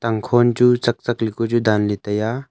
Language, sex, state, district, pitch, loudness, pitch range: Wancho, male, Arunachal Pradesh, Longding, 115 Hz, -18 LUFS, 110-120 Hz